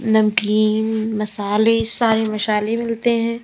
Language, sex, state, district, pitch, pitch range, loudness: Hindi, female, Uttar Pradesh, Lalitpur, 220 Hz, 215-230 Hz, -18 LUFS